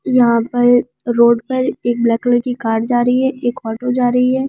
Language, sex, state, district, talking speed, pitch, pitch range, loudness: Hindi, female, Delhi, New Delhi, 225 wpm, 245 Hz, 235-250 Hz, -15 LUFS